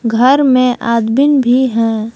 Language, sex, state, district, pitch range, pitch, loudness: Hindi, female, Jharkhand, Palamu, 230-260 Hz, 245 Hz, -12 LUFS